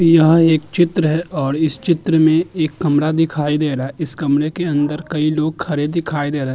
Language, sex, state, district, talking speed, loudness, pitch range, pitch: Hindi, male, Uttar Pradesh, Jyotiba Phule Nagar, 230 wpm, -17 LUFS, 145-165 Hz, 155 Hz